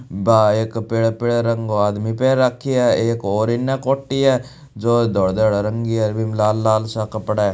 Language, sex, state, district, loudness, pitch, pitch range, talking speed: Hindi, male, Rajasthan, Churu, -18 LUFS, 115 Hz, 110-120 Hz, 220 wpm